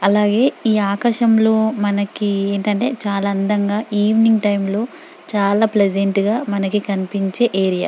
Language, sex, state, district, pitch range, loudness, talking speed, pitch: Telugu, female, Telangana, Karimnagar, 200-220 Hz, -17 LUFS, 120 wpm, 205 Hz